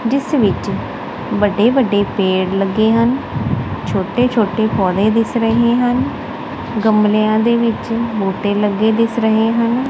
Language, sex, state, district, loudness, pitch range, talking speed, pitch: Punjabi, female, Punjab, Kapurthala, -16 LUFS, 205-235 Hz, 125 wpm, 220 Hz